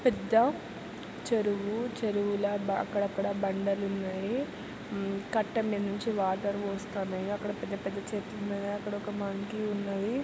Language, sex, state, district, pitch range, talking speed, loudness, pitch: Telugu, female, Telangana, Karimnagar, 200-210 Hz, 125 wpm, -32 LUFS, 205 Hz